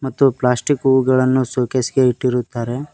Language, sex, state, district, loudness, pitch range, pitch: Kannada, male, Karnataka, Koppal, -17 LUFS, 125-130 Hz, 130 Hz